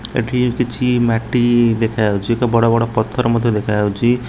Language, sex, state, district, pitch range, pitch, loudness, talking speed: Odia, male, Odisha, Nuapada, 110-120 Hz, 115 Hz, -16 LUFS, 155 wpm